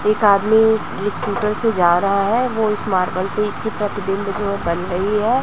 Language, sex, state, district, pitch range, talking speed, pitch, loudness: Hindi, female, Chhattisgarh, Raipur, 195-215 Hz, 210 wpm, 205 Hz, -18 LUFS